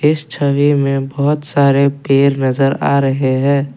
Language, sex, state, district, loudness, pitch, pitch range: Hindi, male, Assam, Kamrup Metropolitan, -14 LUFS, 140 Hz, 135-145 Hz